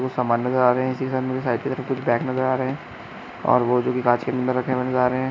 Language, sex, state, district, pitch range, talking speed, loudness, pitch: Hindi, male, Andhra Pradesh, Chittoor, 125-130 Hz, 260 wpm, -22 LUFS, 130 Hz